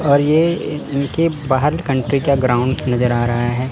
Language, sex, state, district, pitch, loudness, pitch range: Hindi, male, Chandigarh, Chandigarh, 140 Hz, -17 LUFS, 125-150 Hz